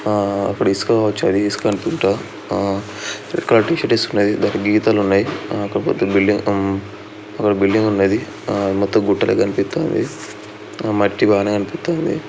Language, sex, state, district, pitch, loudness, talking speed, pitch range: Telugu, male, Andhra Pradesh, Srikakulam, 105 Hz, -18 LUFS, 135 wpm, 100-105 Hz